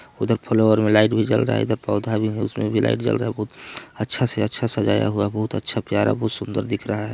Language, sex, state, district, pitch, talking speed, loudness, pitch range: Hindi, male, Chhattisgarh, Balrampur, 110 Hz, 270 wpm, -21 LUFS, 105-115 Hz